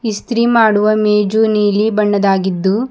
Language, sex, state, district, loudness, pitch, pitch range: Kannada, female, Karnataka, Bidar, -13 LUFS, 210 Hz, 205-220 Hz